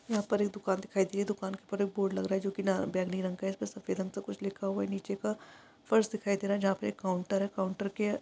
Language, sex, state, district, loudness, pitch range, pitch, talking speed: Hindi, female, Andhra Pradesh, Guntur, -33 LUFS, 190-205 Hz, 195 Hz, 320 wpm